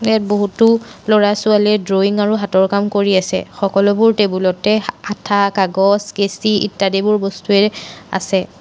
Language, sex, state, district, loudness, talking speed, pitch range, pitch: Assamese, female, Assam, Sonitpur, -15 LUFS, 140 wpm, 195-210 Hz, 205 Hz